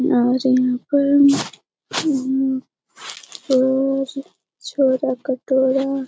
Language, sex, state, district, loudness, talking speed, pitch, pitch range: Hindi, female, Bihar, Lakhisarai, -19 LUFS, 70 wpm, 265 Hz, 260-275 Hz